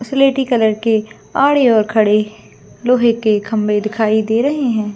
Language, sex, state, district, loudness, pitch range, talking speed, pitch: Hindi, female, Jharkhand, Jamtara, -15 LUFS, 215-250 Hz, 120 wpm, 225 Hz